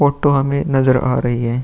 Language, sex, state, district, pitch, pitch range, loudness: Hindi, male, Uttar Pradesh, Muzaffarnagar, 135 Hz, 125-140 Hz, -16 LUFS